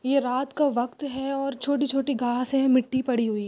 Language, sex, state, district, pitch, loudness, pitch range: Hindi, female, Rajasthan, Churu, 265 Hz, -25 LUFS, 250-275 Hz